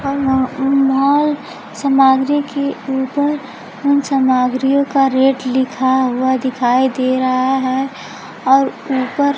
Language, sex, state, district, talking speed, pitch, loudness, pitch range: Hindi, female, Bihar, Kaimur, 120 wpm, 265 Hz, -15 LUFS, 260-275 Hz